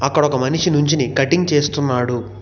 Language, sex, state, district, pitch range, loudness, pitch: Telugu, male, Telangana, Hyderabad, 130-155 Hz, -17 LUFS, 145 Hz